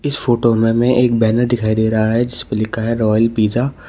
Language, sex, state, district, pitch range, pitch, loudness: Hindi, male, Uttar Pradesh, Shamli, 110-120 Hz, 115 Hz, -16 LUFS